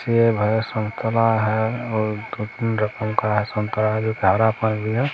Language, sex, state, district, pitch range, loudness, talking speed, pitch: Hindi, male, Bihar, Bhagalpur, 105-110 Hz, -21 LUFS, 140 wpm, 110 Hz